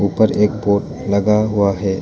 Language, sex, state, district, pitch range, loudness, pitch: Hindi, male, Arunachal Pradesh, Lower Dibang Valley, 100-105 Hz, -16 LUFS, 100 Hz